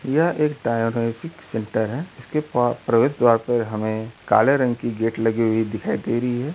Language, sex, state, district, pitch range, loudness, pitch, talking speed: Hindi, male, Uttar Pradesh, Deoria, 110-135 Hz, -22 LUFS, 120 Hz, 190 wpm